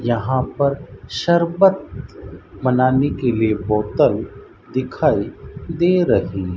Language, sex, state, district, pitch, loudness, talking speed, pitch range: Hindi, male, Rajasthan, Bikaner, 130 Hz, -18 LUFS, 100 wpm, 105-145 Hz